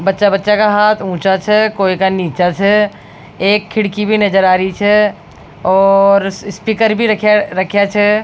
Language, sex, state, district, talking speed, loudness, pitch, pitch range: Rajasthani, female, Rajasthan, Nagaur, 160 wpm, -12 LUFS, 205 Hz, 195-210 Hz